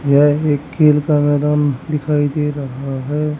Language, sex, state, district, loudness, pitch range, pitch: Hindi, male, Haryana, Rohtak, -16 LUFS, 145-150 Hz, 145 Hz